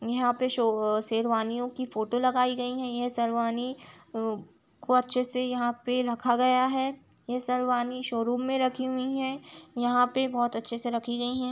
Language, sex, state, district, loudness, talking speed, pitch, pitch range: Hindi, female, Uttar Pradesh, Jalaun, -28 LUFS, 185 wpm, 245 Hz, 235-255 Hz